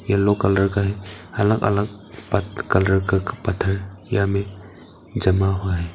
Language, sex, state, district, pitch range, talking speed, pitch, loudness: Hindi, male, Arunachal Pradesh, Papum Pare, 95-105 Hz, 140 wpm, 100 Hz, -21 LUFS